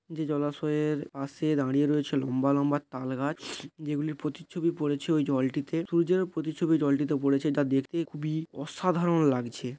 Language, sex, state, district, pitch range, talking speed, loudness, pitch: Bengali, male, West Bengal, Paschim Medinipur, 140-160 Hz, 145 wpm, -29 LUFS, 150 Hz